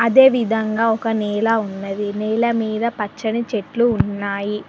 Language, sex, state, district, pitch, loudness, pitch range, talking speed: Telugu, female, Telangana, Mahabubabad, 220 Hz, -19 LUFS, 205-230 Hz, 130 wpm